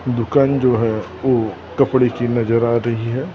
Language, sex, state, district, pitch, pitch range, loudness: Hindi, male, Maharashtra, Gondia, 120 Hz, 115-130 Hz, -18 LUFS